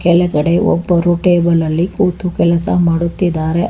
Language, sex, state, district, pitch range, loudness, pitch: Kannada, female, Karnataka, Bangalore, 170-180 Hz, -14 LUFS, 170 Hz